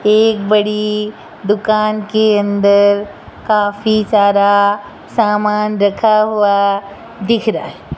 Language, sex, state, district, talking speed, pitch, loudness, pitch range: Hindi, female, Rajasthan, Jaipur, 90 wpm, 210 Hz, -14 LUFS, 205-215 Hz